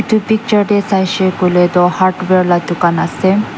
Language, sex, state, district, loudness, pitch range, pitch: Nagamese, female, Nagaland, Dimapur, -13 LUFS, 180-205 Hz, 185 Hz